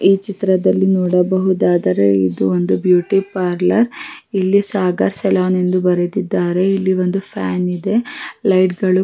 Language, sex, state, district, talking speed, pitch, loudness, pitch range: Kannada, female, Karnataka, Raichur, 75 wpm, 185 Hz, -16 LUFS, 180-195 Hz